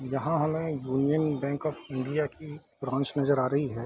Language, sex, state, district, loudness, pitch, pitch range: Hindi, male, Bihar, East Champaran, -29 LUFS, 140 Hz, 135-150 Hz